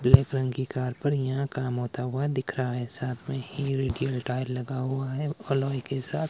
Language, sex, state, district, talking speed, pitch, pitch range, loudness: Hindi, male, Himachal Pradesh, Shimla, 200 wpm, 130 Hz, 125-135 Hz, -29 LUFS